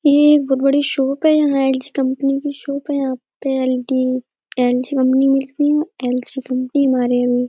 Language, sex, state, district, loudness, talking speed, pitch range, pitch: Hindi, female, Uttar Pradesh, Etah, -17 LUFS, 185 wpm, 255-285 Hz, 270 Hz